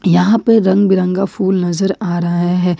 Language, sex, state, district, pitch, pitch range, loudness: Hindi, female, Jharkhand, Ranchi, 190 Hz, 175-195 Hz, -14 LUFS